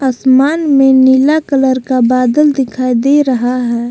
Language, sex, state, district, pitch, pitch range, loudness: Hindi, female, Jharkhand, Palamu, 260 Hz, 250-275 Hz, -11 LUFS